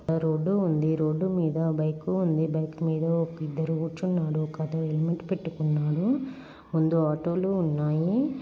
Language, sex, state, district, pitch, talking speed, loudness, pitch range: Telugu, female, Andhra Pradesh, Srikakulam, 160 Hz, 120 wpm, -27 LUFS, 155-175 Hz